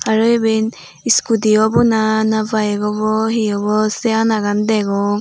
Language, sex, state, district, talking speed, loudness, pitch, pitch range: Chakma, female, Tripura, Unakoti, 150 wpm, -16 LUFS, 220 Hz, 210-220 Hz